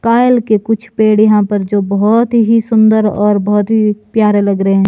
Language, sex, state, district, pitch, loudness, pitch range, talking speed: Hindi, male, Himachal Pradesh, Shimla, 215 Hz, -11 LUFS, 205-225 Hz, 210 wpm